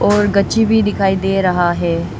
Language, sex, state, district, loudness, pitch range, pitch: Hindi, female, Arunachal Pradesh, Papum Pare, -15 LUFS, 180-205 Hz, 195 Hz